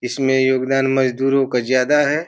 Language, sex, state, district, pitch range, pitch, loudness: Hindi, male, Uttar Pradesh, Ghazipur, 130-135 Hz, 135 Hz, -17 LUFS